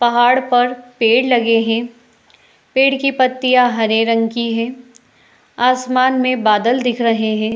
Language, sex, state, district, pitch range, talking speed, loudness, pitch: Hindi, female, Uttar Pradesh, Jalaun, 230-255 Hz, 145 wpm, -15 LUFS, 245 Hz